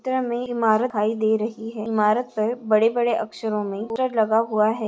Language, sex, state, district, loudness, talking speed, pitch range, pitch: Hindi, female, Andhra Pradesh, Chittoor, -22 LUFS, 210 wpm, 215-235 Hz, 220 Hz